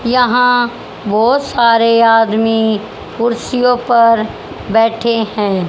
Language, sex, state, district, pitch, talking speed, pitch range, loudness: Hindi, female, Haryana, Charkhi Dadri, 230 Hz, 85 wpm, 225-240 Hz, -13 LUFS